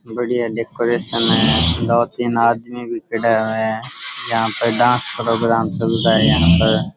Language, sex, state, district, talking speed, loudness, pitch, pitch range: Rajasthani, male, Rajasthan, Churu, 165 wpm, -16 LUFS, 115 Hz, 110-120 Hz